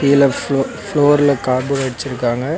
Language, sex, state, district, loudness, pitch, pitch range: Tamil, male, Tamil Nadu, Nilgiris, -16 LUFS, 140 Hz, 130-145 Hz